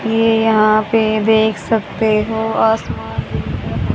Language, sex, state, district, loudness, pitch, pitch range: Hindi, female, Haryana, Charkhi Dadri, -16 LUFS, 220 Hz, 215-225 Hz